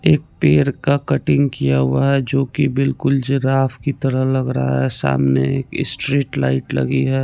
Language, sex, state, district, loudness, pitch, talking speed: Hindi, male, Chandigarh, Chandigarh, -18 LUFS, 130 Hz, 175 wpm